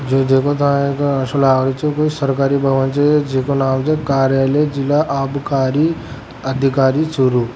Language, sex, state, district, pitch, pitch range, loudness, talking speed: Rajasthani, male, Rajasthan, Churu, 135 Hz, 135-145 Hz, -16 LUFS, 105 wpm